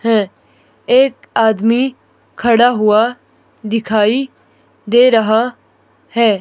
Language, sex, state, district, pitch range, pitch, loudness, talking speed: Hindi, female, Himachal Pradesh, Shimla, 220-245 Hz, 230 Hz, -14 LUFS, 85 wpm